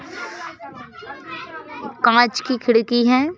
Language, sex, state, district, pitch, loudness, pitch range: Hindi, female, Madhya Pradesh, Bhopal, 255 Hz, -17 LUFS, 240-315 Hz